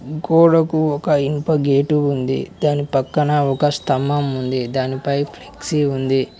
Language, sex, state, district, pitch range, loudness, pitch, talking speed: Telugu, male, Telangana, Mahabubabad, 135-150 Hz, -18 LUFS, 145 Hz, 120 wpm